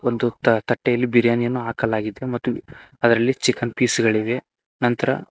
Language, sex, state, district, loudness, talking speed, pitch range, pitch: Kannada, male, Karnataka, Koppal, -21 LUFS, 135 wpm, 115-125 Hz, 120 Hz